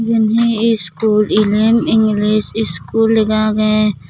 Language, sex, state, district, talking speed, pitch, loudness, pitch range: Chakma, female, Tripura, Dhalai, 115 wpm, 215 Hz, -14 LUFS, 210-225 Hz